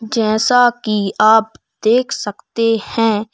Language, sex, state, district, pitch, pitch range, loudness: Hindi, male, Madhya Pradesh, Bhopal, 220 Hz, 215-230 Hz, -15 LUFS